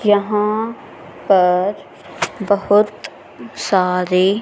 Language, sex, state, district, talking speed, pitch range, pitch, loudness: Hindi, female, Haryana, Jhajjar, 55 wpm, 180-210 Hz, 200 Hz, -17 LUFS